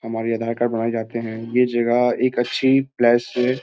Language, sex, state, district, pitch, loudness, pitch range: Hindi, male, Bihar, Jamui, 120 Hz, -20 LUFS, 115-125 Hz